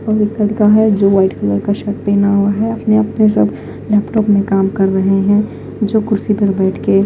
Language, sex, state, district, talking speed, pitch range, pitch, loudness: Hindi, female, Punjab, Fazilka, 220 wpm, 195-215 Hz, 205 Hz, -14 LUFS